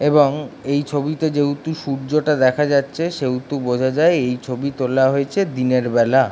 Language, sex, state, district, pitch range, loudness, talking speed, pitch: Bengali, male, West Bengal, Jhargram, 130-150 Hz, -19 LUFS, 170 wpm, 140 Hz